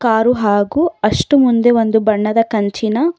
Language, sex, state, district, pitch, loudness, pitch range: Kannada, female, Karnataka, Bangalore, 230 Hz, -14 LUFS, 215-250 Hz